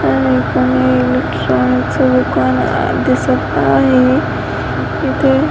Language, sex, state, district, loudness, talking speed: Marathi, female, Maharashtra, Washim, -13 LUFS, 55 wpm